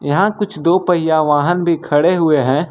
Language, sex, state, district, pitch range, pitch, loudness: Hindi, male, Jharkhand, Ranchi, 150-175 Hz, 165 Hz, -15 LUFS